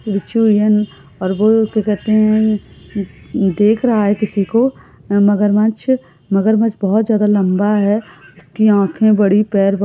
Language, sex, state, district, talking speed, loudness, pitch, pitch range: Hindi, female, Maharashtra, Pune, 90 wpm, -15 LUFS, 210 Hz, 200-215 Hz